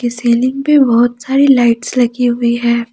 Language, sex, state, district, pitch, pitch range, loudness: Hindi, female, Jharkhand, Ranchi, 240 Hz, 235-260 Hz, -12 LUFS